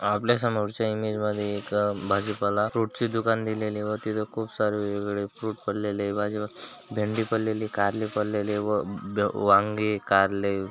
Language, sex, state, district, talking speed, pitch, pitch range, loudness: Marathi, male, Maharashtra, Dhule, 150 wpm, 105 Hz, 100-110 Hz, -27 LUFS